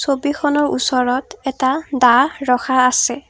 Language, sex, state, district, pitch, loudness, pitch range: Assamese, female, Assam, Kamrup Metropolitan, 265 Hz, -16 LUFS, 255-290 Hz